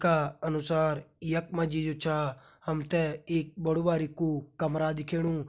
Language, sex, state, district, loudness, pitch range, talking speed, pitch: Hindi, male, Uttarakhand, Uttarkashi, -31 LUFS, 155-165 Hz, 155 wpm, 160 Hz